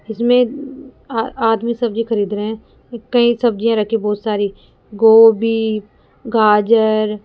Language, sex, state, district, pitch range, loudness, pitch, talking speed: Hindi, female, Rajasthan, Jaipur, 215-235 Hz, -15 LUFS, 225 Hz, 130 wpm